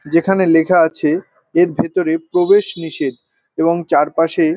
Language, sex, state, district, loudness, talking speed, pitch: Bengali, male, West Bengal, North 24 Parganas, -16 LUFS, 120 wpm, 175 Hz